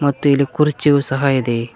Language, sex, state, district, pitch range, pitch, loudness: Kannada, male, Karnataka, Koppal, 135-145 Hz, 140 Hz, -16 LUFS